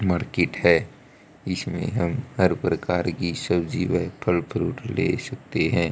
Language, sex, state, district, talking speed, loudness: Hindi, male, Haryana, Rohtak, 140 wpm, -24 LUFS